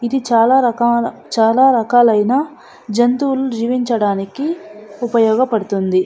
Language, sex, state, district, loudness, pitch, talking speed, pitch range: Telugu, female, Andhra Pradesh, Anantapur, -15 LUFS, 235 Hz, 100 wpm, 220-260 Hz